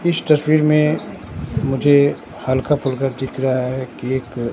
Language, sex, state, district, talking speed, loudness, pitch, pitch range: Hindi, male, Bihar, Katihar, 145 wpm, -18 LUFS, 135 Hz, 130-150 Hz